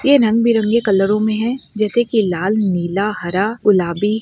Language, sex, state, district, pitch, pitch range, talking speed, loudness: Hindi, female, Chhattisgarh, Bilaspur, 215 Hz, 195-230 Hz, 155 wpm, -16 LUFS